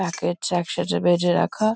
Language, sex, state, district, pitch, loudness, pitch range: Bengali, female, West Bengal, Kolkata, 175 Hz, -22 LUFS, 170-180 Hz